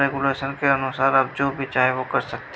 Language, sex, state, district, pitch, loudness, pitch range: Hindi, female, Bihar, Sitamarhi, 135 Hz, -21 LUFS, 130-140 Hz